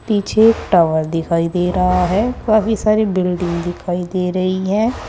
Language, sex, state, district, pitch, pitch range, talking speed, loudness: Hindi, female, Uttar Pradesh, Saharanpur, 185 Hz, 175-215 Hz, 165 wpm, -16 LUFS